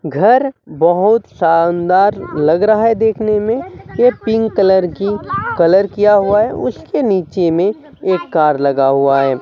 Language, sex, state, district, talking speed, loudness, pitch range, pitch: Hindi, male, Bihar, Katihar, 155 wpm, -14 LUFS, 165-215 Hz, 195 Hz